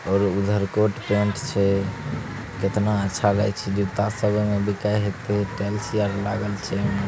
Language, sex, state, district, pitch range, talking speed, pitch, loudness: Angika, male, Bihar, Begusarai, 100-105 Hz, 170 wpm, 100 Hz, -24 LUFS